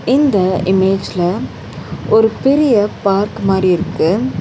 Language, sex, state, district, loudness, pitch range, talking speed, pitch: Tamil, female, Tamil Nadu, Chennai, -14 LUFS, 185-220 Hz, 95 wpm, 195 Hz